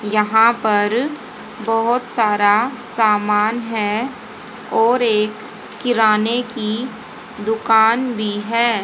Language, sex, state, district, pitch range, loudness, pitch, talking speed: Hindi, female, Haryana, Jhajjar, 215-235 Hz, -17 LUFS, 220 Hz, 90 wpm